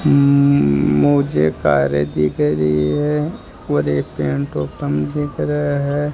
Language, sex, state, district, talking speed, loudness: Hindi, male, Rajasthan, Jaipur, 115 wpm, -17 LUFS